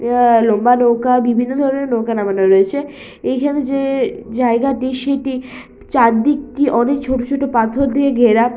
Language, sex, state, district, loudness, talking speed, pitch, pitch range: Bengali, female, West Bengal, Malda, -15 LUFS, 140 wpm, 255 Hz, 235-275 Hz